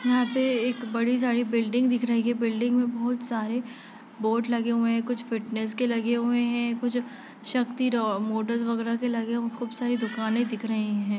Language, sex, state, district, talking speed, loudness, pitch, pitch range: Hindi, female, Bihar, Sitamarhi, 205 wpm, -27 LUFS, 235 Hz, 230-245 Hz